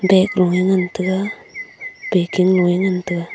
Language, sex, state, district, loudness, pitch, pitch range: Wancho, female, Arunachal Pradesh, Longding, -17 LUFS, 185 Hz, 180-205 Hz